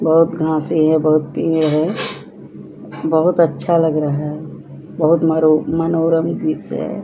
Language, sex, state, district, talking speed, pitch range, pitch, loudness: Hindi, female, Bihar, Vaishali, 145 wpm, 155-165 Hz, 160 Hz, -16 LUFS